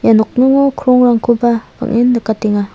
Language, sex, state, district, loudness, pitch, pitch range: Garo, female, Meghalaya, South Garo Hills, -12 LUFS, 240 Hz, 220-250 Hz